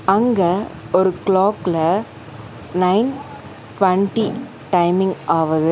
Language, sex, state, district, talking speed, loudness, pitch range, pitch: Tamil, female, Tamil Nadu, Chennai, 75 wpm, -18 LUFS, 165-200 Hz, 185 Hz